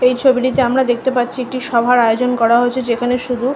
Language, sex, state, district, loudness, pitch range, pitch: Bengali, female, West Bengal, North 24 Parganas, -15 LUFS, 240-255 Hz, 250 Hz